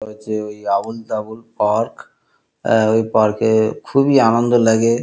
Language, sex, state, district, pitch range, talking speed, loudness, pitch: Bengali, male, West Bengal, Kolkata, 110-115 Hz, 105 wpm, -17 LUFS, 110 Hz